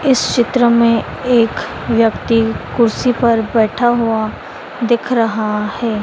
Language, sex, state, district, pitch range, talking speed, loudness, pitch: Hindi, female, Madhya Pradesh, Dhar, 225-240 Hz, 120 wpm, -15 LUFS, 230 Hz